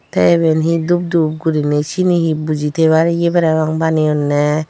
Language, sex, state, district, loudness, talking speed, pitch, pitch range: Chakma, female, Tripura, Dhalai, -15 LUFS, 165 wpm, 160 Hz, 150-165 Hz